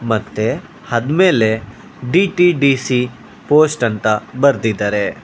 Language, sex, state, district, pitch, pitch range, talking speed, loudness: Kannada, male, Karnataka, Bangalore, 125 Hz, 110-150 Hz, 70 wpm, -16 LUFS